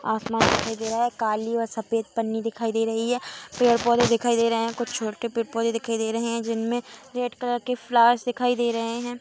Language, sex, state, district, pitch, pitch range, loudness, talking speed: Hindi, female, Bihar, Samastipur, 230 Hz, 225-240 Hz, -24 LUFS, 210 wpm